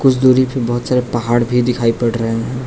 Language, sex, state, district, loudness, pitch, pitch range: Hindi, male, Arunachal Pradesh, Lower Dibang Valley, -15 LUFS, 120 Hz, 120-125 Hz